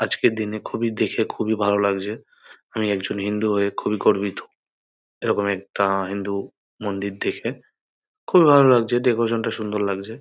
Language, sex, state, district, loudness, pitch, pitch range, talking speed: Bengali, male, West Bengal, North 24 Parganas, -22 LUFS, 105 Hz, 100-115 Hz, 160 wpm